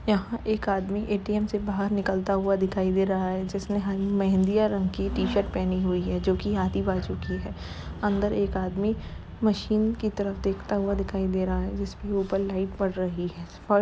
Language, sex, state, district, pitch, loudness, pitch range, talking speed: Hindi, female, Uttar Pradesh, Jalaun, 195 Hz, -27 LUFS, 185-205 Hz, 210 wpm